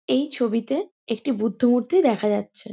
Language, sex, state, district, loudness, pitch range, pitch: Bengali, female, West Bengal, Jhargram, -23 LUFS, 215-265 Hz, 235 Hz